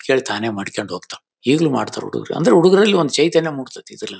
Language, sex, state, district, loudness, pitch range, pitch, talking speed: Kannada, male, Karnataka, Bellary, -17 LUFS, 120-175 Hz, 145 Hz, 230 wpm